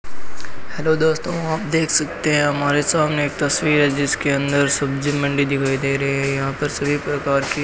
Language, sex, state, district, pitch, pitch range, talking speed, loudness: Hindi, male, Rajasthan, Bikaner, 145 Hz, 140-150 Hz, 195 wpm, -19 LUFS